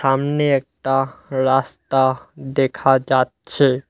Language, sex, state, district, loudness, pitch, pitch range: Bengali, male, West Bengal, Alipurduar, -19 LUFS, 135 Hz, 130-135 Hz